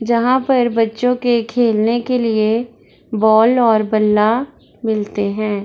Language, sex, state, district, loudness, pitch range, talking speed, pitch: Hindi, female, Bihar, Darbhanga, -16 LUFS, 215-240 Hz, 125 wpm, 225 Hz